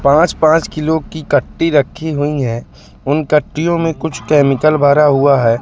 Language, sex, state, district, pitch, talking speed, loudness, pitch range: Hindi, male, Madhya Pradesh, Katni, 150 Hz, 160 wpm, -14 LUFS, 140-160 Hz